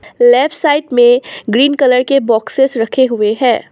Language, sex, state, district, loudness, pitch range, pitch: Hindi, female, Assam, Sonitpur, -12 LUFS, 235-270 Hz, 250 Hz